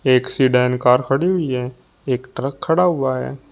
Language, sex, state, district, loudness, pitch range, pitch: Hindi, male, Uttar Pradesh, Shamli, -18 LUFS, 125-140 Hz, 130 Hz